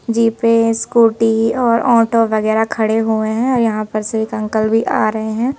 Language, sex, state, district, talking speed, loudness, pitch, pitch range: Hindi, female, Madhya Pradesh, Bhopal, 195 wpm, -15 LUFS, 225 Hz, 220-230 Hz